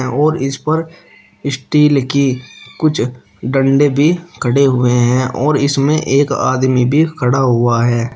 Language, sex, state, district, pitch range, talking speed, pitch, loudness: Hindi, male, Uttar Pradesh, Shamli, 125-150 Hz, 140 wpm, 135 Hz, -14 LUFS